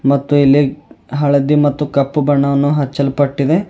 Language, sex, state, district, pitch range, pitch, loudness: Kannada, male, Karnataka, Bidar, 140-145 Hz, 145 Hz, -14 LUFS